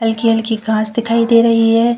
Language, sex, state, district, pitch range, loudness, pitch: Hindi, female, Chhattisgarh, Bilaspur, 225-230 Hz, -14 LUFS, 230 Hz